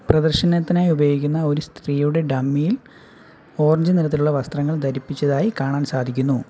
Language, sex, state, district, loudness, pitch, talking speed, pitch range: Malayalam, male, Kerala, Kollam, -20 LUFS, 145 Hz, 100 wpm, 140-160 Hz